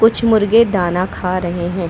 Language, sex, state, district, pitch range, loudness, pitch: Hindi, female, Chhattisgarh, Bilaspur, 175-225 Hz, -15 LUFS, 185 Hz